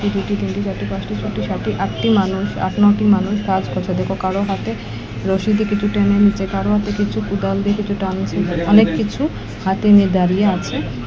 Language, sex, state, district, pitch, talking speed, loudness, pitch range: Bengali, female, Assam, Hailakandi, 195 Hz, 185 wpm, -18 LUFS, 170-205 Hz